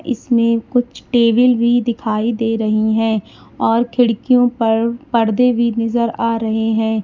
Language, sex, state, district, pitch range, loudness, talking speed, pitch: Hindi, female, Uttar Pradesh, Lalitpur, 225-240 Hz, -16 LUFS, 145 wpm, 230 Hz